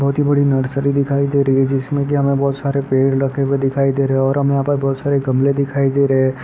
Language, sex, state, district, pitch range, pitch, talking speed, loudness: Hindi, male, Uttar Pradesh, Ghazipur, 135-140 Hz, 140 Hz, 290 wpm, -16 LUFS